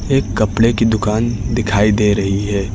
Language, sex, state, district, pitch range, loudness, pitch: Hindi, male, Uttar Pradesh, Lucknow, 100-115 Hz, -16 LUFS, 105 Hz